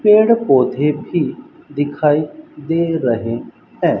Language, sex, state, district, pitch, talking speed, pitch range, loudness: Hindi, male, Rajasthan, Bikaner, 150 Hz, 105 wpm, 140-170 Hz, -17 LUFS